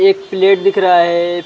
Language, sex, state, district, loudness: Hindi, male, Chhattisgarh, Rajnandgaon, -12 LUFS